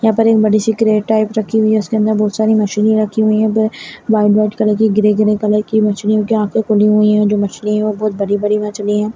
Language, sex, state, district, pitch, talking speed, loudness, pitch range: Kumaoni, female, Uttarakhand, Uttarkashi, 215 Hz, 270 wpm, -14 LUFS, 210-220 Hz